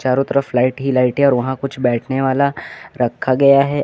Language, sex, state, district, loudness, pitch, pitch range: Hindi, male, Uttar Pradesh, Lucknow, -16 LUFS, 135 Hz, 130-140 Hz